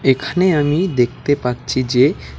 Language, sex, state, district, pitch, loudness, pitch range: Bengali, male, West Bengal, Alipurduar, 130 Hz, -17 LUFS, 125-150 Hz